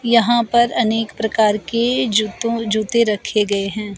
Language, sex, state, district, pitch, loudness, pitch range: Hindi, female, Himachal Pradesh, Shimla, 225 Hz, -17 LUFS, 215-235 Hz